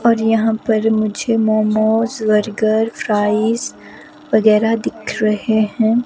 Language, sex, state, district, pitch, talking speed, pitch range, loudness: Hindi, female, Himachal Pradesh, Shimla, 220 Hz, 110 wpm, 215-225 Hz, -16 LUFS